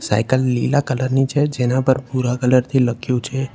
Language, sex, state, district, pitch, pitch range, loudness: Gujarati, male, Gujarat, Valsad, 130 Hz, 125-135 Hz, -18 LUFS